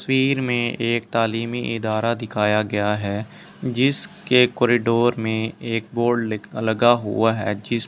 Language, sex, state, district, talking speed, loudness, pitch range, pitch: Hindi, male, Delhi, New Delhi, 170 wpm, -21 LUFS, 110-120 Hz, 115 Hz